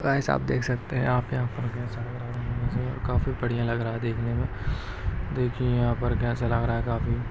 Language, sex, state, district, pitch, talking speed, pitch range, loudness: Hindi, male, Chhattisgarh, Rajnandgaon, 120 Hz, 245 wpm, 115-125 Hz, -28 LUFS